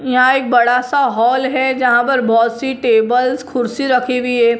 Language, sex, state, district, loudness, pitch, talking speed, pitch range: Hindi, female, Maharashtra, Mumbai Suburban, -14 LUFS, 250 Hz, 195 wpm, 240-260 Hz